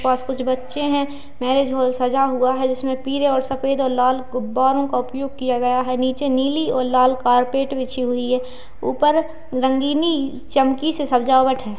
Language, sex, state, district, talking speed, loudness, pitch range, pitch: Hindi, female, Bihar, Madhepura, 180 wpm, -20 LUFS, 255-275 Hz, 260 Hz